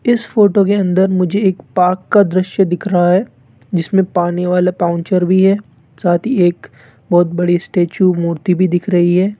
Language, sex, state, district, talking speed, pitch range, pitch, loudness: Hindi, male, Rajasthan, Jaipur, 180 wpm, 175-195 Hz, 180 Hz, -14 LUFS